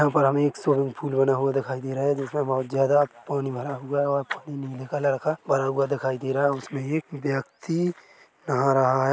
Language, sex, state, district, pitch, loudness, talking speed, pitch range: Hindi, male, Chhattisgarh, Bilaspur, 140 Hz, -25 LUFS, 245 wpm, 135-145 Hz